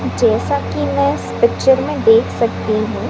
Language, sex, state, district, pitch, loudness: Hindi, female, Chhattisgarh, Raipur, 215 Hz, -16 LUFS